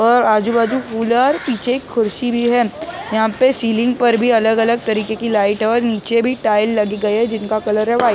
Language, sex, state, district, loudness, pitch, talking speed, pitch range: Hindi, male, Maharashtra, Mumbai Suburban, -16 LUFS, 230 Hz, 250 wpm, 220-240 Hz